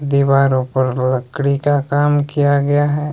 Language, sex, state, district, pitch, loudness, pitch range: Hindi, male, Himachal Pradesh, Shimla, 140 Hz, -16 LUFS, 135-145 Hz